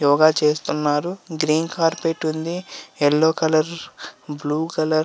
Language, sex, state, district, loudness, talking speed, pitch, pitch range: Telugu, male, Andhra Pradesh, Visakhapatnam, -21 LUFS, 105 wpm, 155 Hz, 150-165 Hz